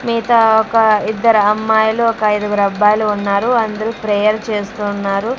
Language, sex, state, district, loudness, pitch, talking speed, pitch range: Telugu, female, Andhra Pradesh, Sri Satya Sai, -14 LUFS, 215 Hz, 120 wpm, 210-225 Hz